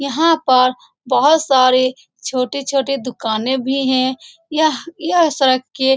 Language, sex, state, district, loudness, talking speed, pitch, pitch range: Hindi, female, Bihar, Saran, -16 LUFS, 250 wpm, 265 Hz, 255-305 Hz